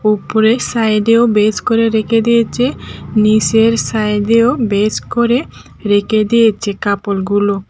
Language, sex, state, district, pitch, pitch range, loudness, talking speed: Bengali, female, Tripura, Dhalai, 220 Hz, 210-230 Hz, -13 LUFS, 115 wpm